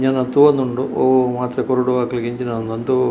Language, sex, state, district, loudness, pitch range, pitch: Tulu, male, Karnataka, Dakshina Kannada, -18 LUFS, 125-130 Hz, 125 Hz